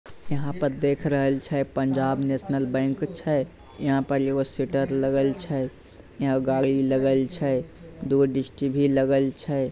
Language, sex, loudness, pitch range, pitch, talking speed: Bhojpuri, male, -25 LUFS, 135-140 Hz, 135 Hz, 155 wpm